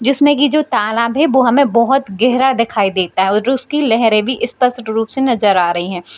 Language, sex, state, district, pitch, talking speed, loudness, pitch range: Hindi, female, Bihar, Jamui, 235 Hz, 235 wpm, -14 LUFS, 210-265 Hz